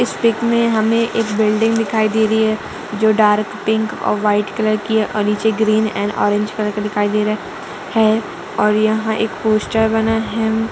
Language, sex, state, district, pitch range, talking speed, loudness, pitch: Hindi, female, Uttar Pradesh, Budaun, 210-220 Hz, 195 wpm, -17 LUFS, 220 Hz